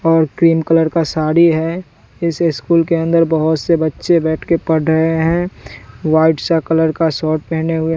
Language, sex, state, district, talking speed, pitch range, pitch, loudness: Hindi, male, Bihar, West Champaran, 190 wpm, 160-165 Hz, 160 Hz, -15 LUFS